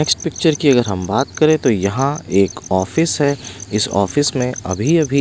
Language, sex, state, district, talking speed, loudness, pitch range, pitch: Hindi, male, Punjab, Pathankot, 195 wpm, -17 LUFS, 100-150 Hz, 130 Hz